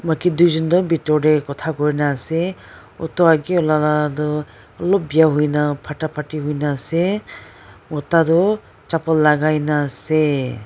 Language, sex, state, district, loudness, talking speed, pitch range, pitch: Nagamese, female, Nagaland, Dimapur, -18 LUFS, 140 wpm, 150-165 Hz, 155 Hz